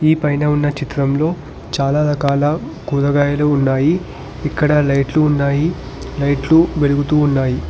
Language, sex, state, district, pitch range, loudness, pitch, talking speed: Telugu, male, Telangana, Hyderabad, 140-150 Hz, -16 LUFS, 145 Hz, 100 wpm